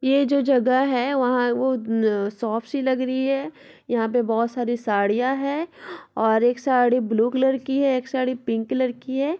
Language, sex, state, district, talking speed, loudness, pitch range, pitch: Hindi, female, Bihar, Saran, 205 wpm, -22 LUFS, 235-265 Hz, 255 Hz